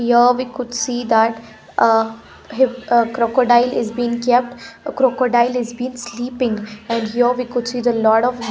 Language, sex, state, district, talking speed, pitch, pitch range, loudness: English, female, Punjab, Pathankot, 155 wpm, 240 Hz, 230-250 Hz, -18 LUFS